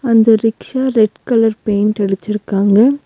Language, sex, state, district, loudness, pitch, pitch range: Tamil, female, Tamil Nadu, Nilgiris, -14 LUFS, 220 Hz, 205-230 Hz